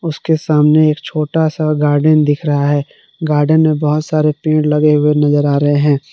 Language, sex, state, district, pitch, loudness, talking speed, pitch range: Hindi, male, Jharkhand, Palamu, 150 Hz, -13 LUFS, 195 wpm, 145-155 Hz